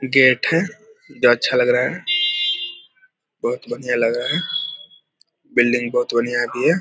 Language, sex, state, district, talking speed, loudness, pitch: Hindi, male, Bihar, Vaishali, 150 wpm, -19 LUFS, 185 Hz